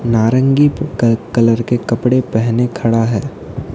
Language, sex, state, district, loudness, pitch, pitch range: Hindi, male, Odisha, Nuapada, -14 LUFS, 120 Hz, 115-130 Hz